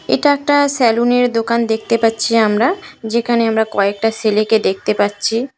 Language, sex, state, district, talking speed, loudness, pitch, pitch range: Bengali, female, West Bengal, Cooch Behar, 160 wpm, -15 LUFS, 230 Hz, 220-240 Hz